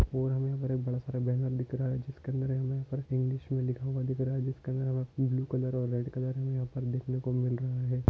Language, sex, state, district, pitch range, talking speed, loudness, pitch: Hindi, male, Maharashtra, Solapur, 125-130 Hz, 260 wpm, -33 LUFS, 130 Hz